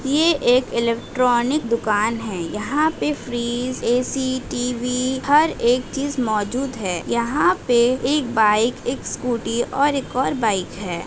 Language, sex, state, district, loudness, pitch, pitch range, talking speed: Hindi, female, Bihar, Araria, -20 LUFS, 250 Hz, 235-275 Hz, 140 wpm